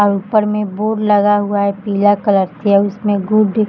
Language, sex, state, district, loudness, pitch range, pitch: Hindi, female, Jharkhand, Sahebganj, -15 LUFS, 200-210 Hz, 205 Hz